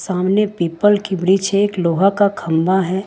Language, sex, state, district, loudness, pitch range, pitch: Hindi, female, Jharkhand, Ranchi, -16 LUFS, 180-200 Hz, 190 Hz